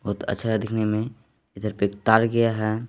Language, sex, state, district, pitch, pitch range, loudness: Hindi, male, Jharkhand, Palamu, 110 Hz, 105-115 Hz, -23 LUFS